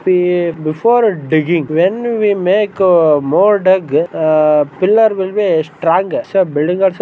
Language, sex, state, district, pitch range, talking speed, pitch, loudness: Kannada, male, Karnataka, Dharwad, 155-200 Hz, 145 wpm, 180 Hz, -13 LUFS